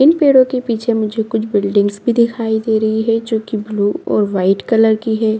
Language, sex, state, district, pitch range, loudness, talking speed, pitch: Hindi, female, Chhattisgarh, Bastar, 215-230 Hz, -15 LUFS, 220 wpm, 220 Hz